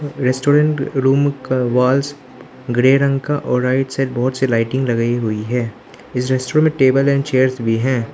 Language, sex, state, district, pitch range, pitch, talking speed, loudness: Hindi, male, Arunachal Pradesh, Lower Dibang Valley, 125-140 Hz, 130 Hz, 175 wpm, -17 LUFS